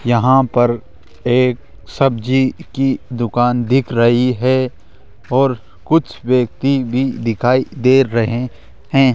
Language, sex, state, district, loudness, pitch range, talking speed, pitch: Hindi, male, Rajasthan, Jaipur, -16 LUFS, 120-130 Hz, 110 wpm, 125 Hz